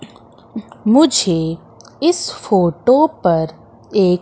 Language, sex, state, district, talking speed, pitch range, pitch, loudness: Hindi, female, Madhya Pradesh, Katni, 70 wpm, 170-260 Hz, 200 Hz, -16 LUFS